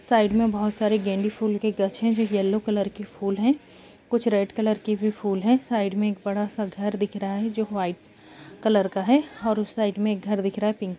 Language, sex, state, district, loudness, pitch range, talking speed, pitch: Hindi, female, Bihar, Kishanganj, -25 LUFS, 200-220 Hz, 250 wpm, 210 Hz